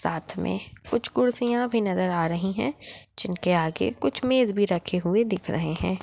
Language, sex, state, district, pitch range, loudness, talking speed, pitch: Hindi, female, Maharashtra, Nagpur, 175-240 Hz, -25 LUFS, 180 wpm, 190 Hz